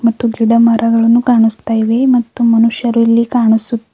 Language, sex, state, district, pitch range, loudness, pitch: Kannada, female, Karnataka, Bidar, 230-235 Hz, -12 LUFS, 230 Hz